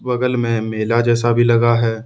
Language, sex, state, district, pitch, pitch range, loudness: Hindi, male, Jharkhand, Ranchi, 120 Hz, 115-120 Hz, -16 LUFS